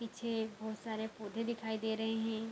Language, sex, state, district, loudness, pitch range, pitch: Hindi, female, Bihar, Kishanganj, -39 LUFS, 220-225 Hz, 220 Hz